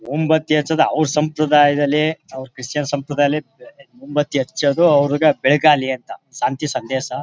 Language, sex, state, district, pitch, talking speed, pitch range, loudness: Kannada, male, Karnataka, Mysore, 145 Hz, 115 wpm, 140-155 Hz, -17 LUFS